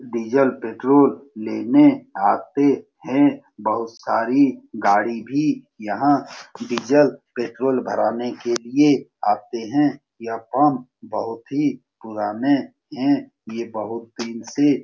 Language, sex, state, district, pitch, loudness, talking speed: Hindi, male, Bihar, Saran, 130 Hz, -21 LUFS, 120 wpm